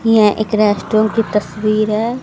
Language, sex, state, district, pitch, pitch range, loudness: Hindi, female, Haryana, Rohtak, 215 Hz, 210-220 Hz, -15 LUFS